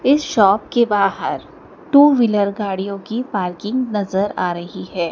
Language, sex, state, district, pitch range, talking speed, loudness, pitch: Hindi, female, Madhya Pradesh, Dhar, 195-245 Hz, 150 wpm, -18 LUFS, 205 Hz